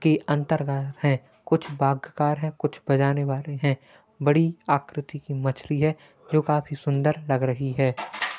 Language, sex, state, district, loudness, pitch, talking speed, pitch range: Hindi, male, Uttar Pradesh, Hamirpur, -25 LUFS, 145 Hz, 150 wpm, 140-150 Hz